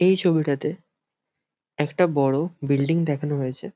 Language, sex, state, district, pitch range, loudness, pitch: Bengali, male, West Bengal, Jhargram, 140-170 Hz, -23 LUFS, 150 Hz